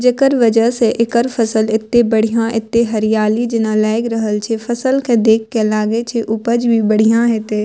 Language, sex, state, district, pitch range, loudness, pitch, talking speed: Maithili, female, Bihar, Purnia, 220-235 Hz, -15 LUFS, 225 Hz, 180 wpm